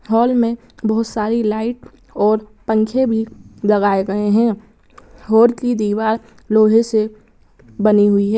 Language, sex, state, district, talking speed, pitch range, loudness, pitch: Hindi, female, Bihar, Sitamarhi, 135 wpm, 215-230 Hz, -17 LUFS, 220 Hz